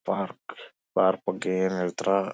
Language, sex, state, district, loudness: Kannada, male, Karnataka, Bellary, -27 LUFS